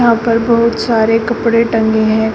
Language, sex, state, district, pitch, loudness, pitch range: Hindi, female, Uttar Pradesh, Shamli, 230 Hz, -12 LUFS, 220-235 Hz